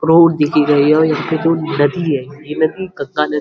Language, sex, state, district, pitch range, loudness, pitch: Hindi, male, Uttarakhand, Uttarkashi, 145-160 Hz, -15 LUFS, 150 Hz